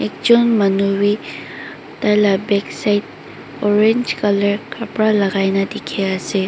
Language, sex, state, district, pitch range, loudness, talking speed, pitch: Nagamese, female, Mizoram, Aizawl, 195-215 Hz, -17 LUFS, 110 wpm, 205 Hz